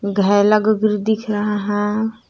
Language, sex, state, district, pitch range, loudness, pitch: Hindi, female, Jharkhand, Palamu, 205-215 Hz, -17 LUFS, 210 Hz